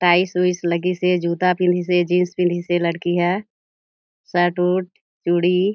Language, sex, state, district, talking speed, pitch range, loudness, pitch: Chhattisgarhi, female, Chhattisgarh, Jashpur, 155 wpm, 175-180 Hz, -19 LUFS, 180 Hz